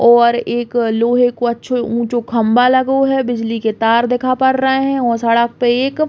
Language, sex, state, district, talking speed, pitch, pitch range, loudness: Bundeli, female, Uttar Pradesh, Hamirpur, 205 wpm, 240 Hz, 235-255 Hz, -15 LUFS